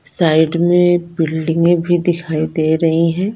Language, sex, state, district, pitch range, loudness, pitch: Hindi, female, Punjab, Kapurthala, 160-175 Hz, -15 LUFS, 165 Hz